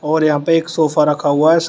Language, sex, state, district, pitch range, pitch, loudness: Hindi, male, Uttar Pradesh, Shamli, 150-165 Hz, 155 Hz, -15 LUFS